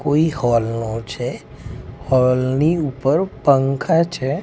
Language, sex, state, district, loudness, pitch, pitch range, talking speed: Gujarati, male, Gujarat, Gandhinagar, -18 LUFS, 130 Hz, 120-145 Hz, 120 wpm